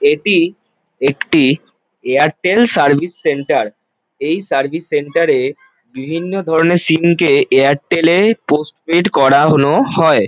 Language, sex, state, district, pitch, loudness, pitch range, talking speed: Bengali, male, West Bengal, Jalpaiguri, 170 Hz, -13 LUFS, 155-195 Hz, 105 wpm